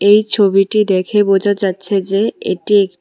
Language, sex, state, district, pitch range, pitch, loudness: Bengali, female, Tripura, West Tripura, 195-210 Hz, 200 Hz, -14 LUFS